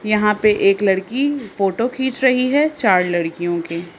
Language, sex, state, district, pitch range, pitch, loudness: Hindi, female, Madhya Pradesh, Bhopal, 185-255 Hz, 210 Hz, -18 LUFS